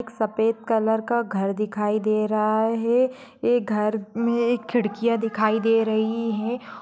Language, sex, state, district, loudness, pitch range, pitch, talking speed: Magahi, female, Bihar, Gaya, -23 LUFS, 215-235 Hz, 225 Hz, 160 wpm